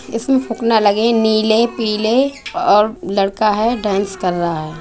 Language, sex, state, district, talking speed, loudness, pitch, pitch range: Bundeli, female, Uttar Pradesh, Budaun, 160 wpm, -16 LUFS, 220 Hz, 200-230 Hz